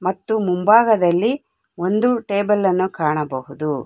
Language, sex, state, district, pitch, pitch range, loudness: Kannada, female, Karnataka, Bangalore, 185 Hz, 165-220 Hz, -18 LUFS